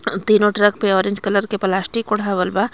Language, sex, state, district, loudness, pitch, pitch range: Bhojpuri, female, Jharkhand, Palamu, -18 LUFS, 200 Hz, 195-210 Hz